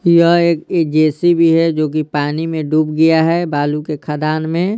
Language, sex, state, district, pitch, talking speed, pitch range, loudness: Hindi, male, Bihar, Patna, 160 Hz, 165 wpm, 155-170 Hz, -15 LUFS